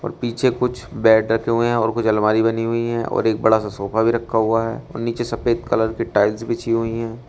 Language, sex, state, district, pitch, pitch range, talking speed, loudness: Hindi, male, Uttar Pradesh, Shamli, 115 Hz, 110-115 Hz, 220 wpm, -19 LUFS